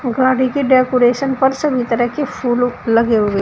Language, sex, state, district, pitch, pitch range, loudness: Hindi, female, Uttar Pradesh, Shamli, 250 Hz, 240-265 Hz, -15 LUFS